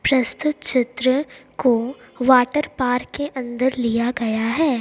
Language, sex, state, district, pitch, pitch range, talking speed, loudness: Hindi, female, Bihar, Patna, 255 Hz, 245-270 Hz, 125 wpm, -20 LUFS